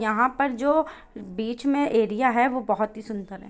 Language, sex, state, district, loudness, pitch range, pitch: Hindi, female, Jharkhand, Jamtara, -24 LUFS, 215-275 Hz, 235 Hz